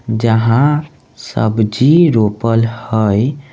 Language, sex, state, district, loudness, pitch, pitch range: Maithili, male, Bihar, Samastipur, -13 LUFS, 115 Hz, 110-140 Hz